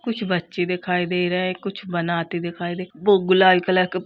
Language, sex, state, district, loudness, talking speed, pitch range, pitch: Hindi, female, Uttar Pradesh, Jalaun, -21 LUFS, 220 wpm, 175-185 Hz, 180 Hz